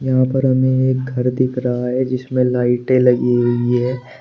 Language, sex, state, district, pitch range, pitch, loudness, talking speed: Hindi, male, Uttar Pradesh, Shamli, 125-130 Hz, 125 Hz, -17 LUFS, 185 wpm